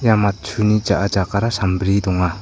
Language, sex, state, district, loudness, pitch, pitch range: Garo, male, Meghalaya, South Garo Hills, -18 LUFS, 100 Hz, 95-105 Hz